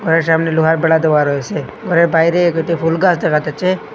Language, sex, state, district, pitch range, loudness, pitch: Bengali, male, Assam, Hailakandi, 160-170 Hz, -14 LUFS, 165 Hz